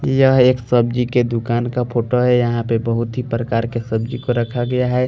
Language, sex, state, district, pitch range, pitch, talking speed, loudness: Hindi, male, Delhi, New Delhi, 115-125 Hz, 120 Hz, 225 wpm, -18 LUFS